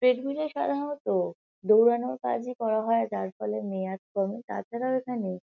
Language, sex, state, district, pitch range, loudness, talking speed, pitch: Bengali, female, West Bengal, Kolkata, 190-250 Hz, -28 LUFS, 145 wpm, 220 Hz